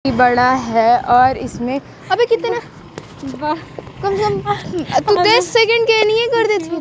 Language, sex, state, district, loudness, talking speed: Hindi, female, Bihar, Kaimur, -15 LUFS, 150 wpm